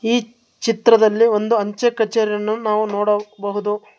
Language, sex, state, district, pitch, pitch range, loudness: Kannada, male, Karnataka, Bangalore, 215 Hz, 210-230 Hz, -18 LUFS